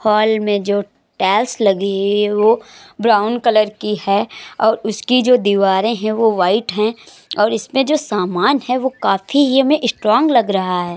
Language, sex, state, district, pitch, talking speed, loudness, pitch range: Hindi, female, Uttar Pradesh, Muzaffarnagar, 215 Hz, 175 wpm, -16 LUFS, 205-235 Hz